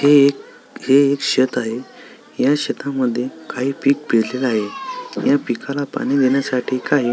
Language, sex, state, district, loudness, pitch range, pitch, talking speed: Marathi, male, Maharashtra, Sindhudurg, -19 LUFS, 125-140 Hz, 135 Hz, 160 wpm